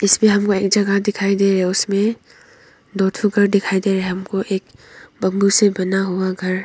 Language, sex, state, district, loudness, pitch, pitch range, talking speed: Hindi, female, Arunachal Pradesh, Longding, -17 LUFS, 195 Hz, 190-205 Hz, 205 wpm